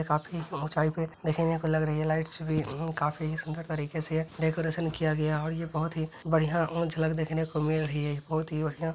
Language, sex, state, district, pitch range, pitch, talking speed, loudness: Hindi, male, Bihar, Purnia, 155-165 Hz, 160 Hz, 240 wpm, -30 LUFS